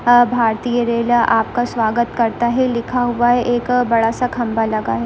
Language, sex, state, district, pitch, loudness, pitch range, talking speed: Hindi, female, Rajasthan, Churu, 240 Hz, -17 LUFS, 230-245 Hz, 190 wpm